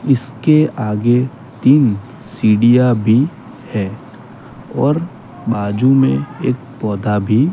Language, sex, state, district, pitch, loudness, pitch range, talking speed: Hindi, male, Gujarat, Gandhinagar, 125 Hz, -15 LUFS, 110-135 Hz, 95 wpm